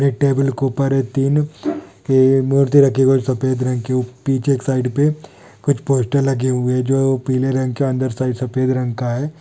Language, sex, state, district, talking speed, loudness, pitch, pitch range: Hindi, male, Andhra Pradesh, Anantapur, 30 wpm, -17 LUFS, 130 Hz, 130-135 Hz